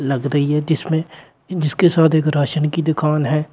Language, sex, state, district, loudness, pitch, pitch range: Hindi, male, Uttar Pradesh, Shamli, -17 LUFS, 155 Hz, 145-160 Hz